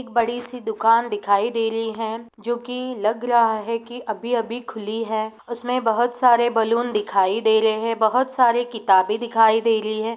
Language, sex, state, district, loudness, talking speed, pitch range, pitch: Hindi, female, Bihar, East Champaran, -21 LUFS, 190 wpm, 220-240 Hz, 225 Hz